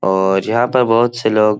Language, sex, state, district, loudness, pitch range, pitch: Hindi, male, Bihar, Jahanabad, -15 LUFS, 100-120 Hz, 110 Hz